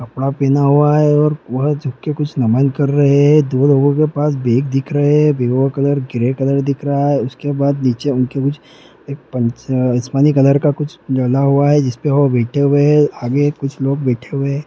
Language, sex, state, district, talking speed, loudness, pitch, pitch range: Hindi, male, Bihar, East Champaran, 225 wpm, -15 LUFS, 140 Hz, 135-145 Hz